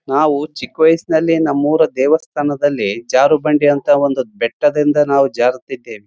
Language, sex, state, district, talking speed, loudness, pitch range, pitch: Kannada, male, Karnataka, Raichur, 170 wpm, -15 LUFS, 135-155 Hz, 145 Hz